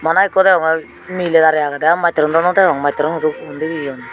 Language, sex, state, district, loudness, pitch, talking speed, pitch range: Chakma, female, Tripura, Unakoti, -15 LUFS, 160 Hz, 205 wpm, 155-175 Hz